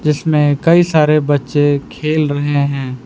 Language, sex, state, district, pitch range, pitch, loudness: Hindi, male, Jharkhand, Palamu, 145-155 Hz, 145 Hz, -14 LUFS